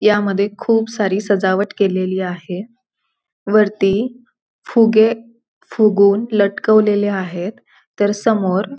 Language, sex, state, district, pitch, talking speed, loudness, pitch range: Marathi, female, Maharashtra, Pune, 205 Hz, 95 wpm, -16 LUFS, 195-225 Hz